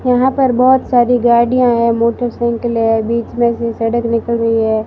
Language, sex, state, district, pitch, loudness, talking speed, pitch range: Hindi, female, Rajasthan, Barmer, 235 Hz, -14 LUFS, 185 wpm, 230-245 Hz